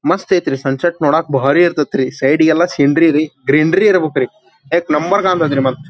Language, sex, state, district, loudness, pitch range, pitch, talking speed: Kannada, male, Karnataka, Belgaum, -14 LUFS, 140-175 Hz, 155 Hz, 215 wpm